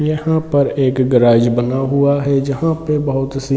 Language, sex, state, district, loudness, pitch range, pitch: Hindi, male, Chhattisgarh, Bilaspur, -15 LUFS, 130-150 Hz, 140 Hz